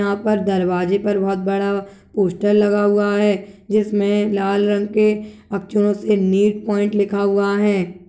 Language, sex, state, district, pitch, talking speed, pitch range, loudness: Hindi, male, Chhattisgarh, Kabirdham, 205 Hz, 155 wpm, 200-205 Hz, -18 LUFS